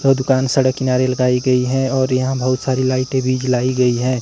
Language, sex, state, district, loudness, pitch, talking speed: Hindi, male, Himachal Pradesh, Shimla, -17 LUFS, 130 Hz, 225 wpm